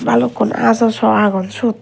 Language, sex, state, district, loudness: Chakma, female, Tripura, West Tripura, -15 LUFS